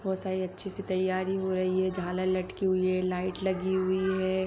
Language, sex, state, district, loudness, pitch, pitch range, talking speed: Hindi, female, Jharkhand, Sahebganj, -29 LUFS, 185 Hz, 185-190 Hz, 215 wpm